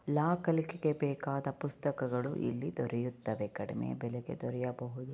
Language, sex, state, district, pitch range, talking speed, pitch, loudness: Kannada, female, Karnataka, Chamarajanagar, 120-150 Hz, 105 wpm, 135 Hz, -36 LUFS